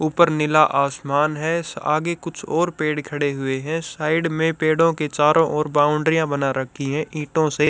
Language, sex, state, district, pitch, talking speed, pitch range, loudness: Hindi, male, Maharashtra, Gondia, 155 Hz, 180 wpm, 150-160 Hz, -20 LUFS